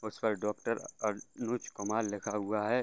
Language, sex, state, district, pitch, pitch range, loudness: Hindi, male, Bihar, Gopalganj, 105 Hz, 105-115 Hz, -35 LUFS